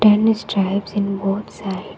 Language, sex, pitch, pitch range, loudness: English, female, 200 Hz, 195-210 Hz, -20 LUFS